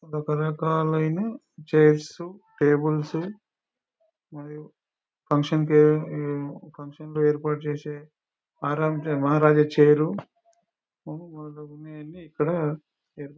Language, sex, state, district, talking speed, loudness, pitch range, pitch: Telugu, male, Telangana, Nalgonda, 60 wpm, -23 LUFS, 150-160 Hz, 150 Hz